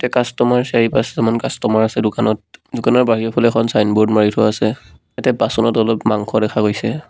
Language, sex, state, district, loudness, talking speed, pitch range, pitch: Assamese, male, Assam, Sonitpur, -16 LUFS, 150 wpm, 110-120 Hz, 115 Hz